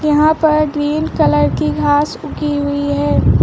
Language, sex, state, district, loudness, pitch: Hindi, female, Uttar Pradesh, Lucknow, -15 LUFS, 290 Hz